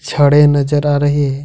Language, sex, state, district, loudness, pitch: Hindi, male, Jharkhand, Ranchi, -12 LUFS, 145 Hz